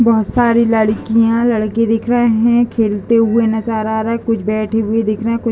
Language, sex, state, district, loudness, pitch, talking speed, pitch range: Hindi, female, Uttar Pradesh, Deoria, -14 LUFS, 225 Hz, 215 wpm, 220-230 Hz